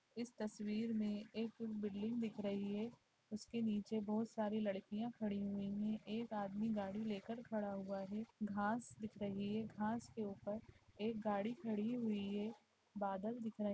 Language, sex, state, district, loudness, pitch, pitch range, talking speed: Hindi, female, Chhattisgarh, Rajnandgaon, -44 LUFS, 215 Hz, 205-225 Hz, 165 wpm